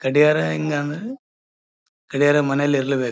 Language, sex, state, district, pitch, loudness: Kannada, male, Karnataka, Bellary, 140 Hz, -20 LUFS